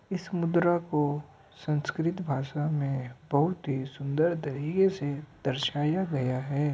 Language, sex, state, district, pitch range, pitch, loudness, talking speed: Hindi, male, Uttar Pradesh, Hamirpur, 140-170 Hz, 150 Hz, -29 LUFS, 125 wpm